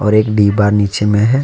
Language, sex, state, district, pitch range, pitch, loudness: Hindi, male, Jharkhand, Ranchi, 105-110 Hz, 105 Hz, -13 LUFS